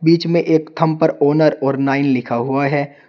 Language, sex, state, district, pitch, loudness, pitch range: Hindi, male, Uttar Pradesh, Shamli, 145 Hz, -16 LUFS, 135-160 Hz